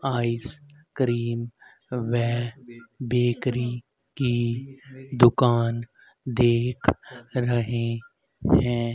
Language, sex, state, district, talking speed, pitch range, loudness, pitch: Hindi, male, Haryana, Rohtak, 60 wpm, 120-125 Hz, -25 LUFS, 120 Hz